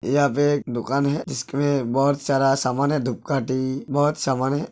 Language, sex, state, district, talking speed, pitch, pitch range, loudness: Hindi, male, Uttar Pradesh, Hamirpur, 165 wpm, 140 Hz, 130-145 Hz, -22 LUFS